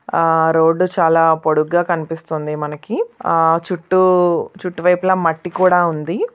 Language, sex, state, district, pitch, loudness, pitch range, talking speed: Telugu, female, Andhra Pradesh, Visakhapatnam, 170 Hz, -16 LUFS, 160-180 Hz, 125 wpm